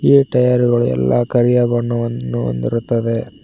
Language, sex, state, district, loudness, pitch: Kannada, male, Karnataka, Koppal, -16 LUFS, 120 Hz